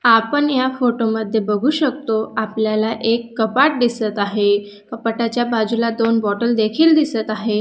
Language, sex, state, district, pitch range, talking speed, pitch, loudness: Marathi, female, Maharashtra, Dhule, 220-240 Hz, 140 wpm, 225 Hz, -18 LUFS